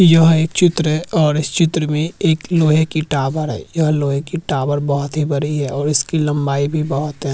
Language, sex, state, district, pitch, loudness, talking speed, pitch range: Hindi, male, Uttarakhand, Tehri Garhwal, 155 Hz, -17 LUFS, 220 wpm, 140-160 Hz